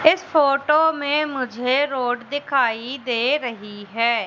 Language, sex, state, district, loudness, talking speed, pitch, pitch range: Hindi, female, Madhya Pradesh, Katni, -20 LUFS, 125 wpm, 270 Hz, 240-290 Hz